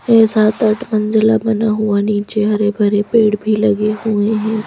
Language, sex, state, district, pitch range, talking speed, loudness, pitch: Hindi, female, Madhya Pradesh, Bhopal, 210-220 Hz, 180 wpm, -15 LUFS, 215 Hz